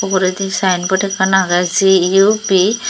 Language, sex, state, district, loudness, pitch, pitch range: Chakma, female, Tripura, Dhalai, -13 LUFS, 190 Hz, 185-195 Hz